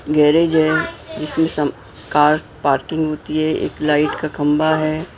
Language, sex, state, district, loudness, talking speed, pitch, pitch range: Hindi, male, Maharashtra, Mumbai Suburban, -18 LUFS, 160 wpm, 155 Hz, 150-155 Hz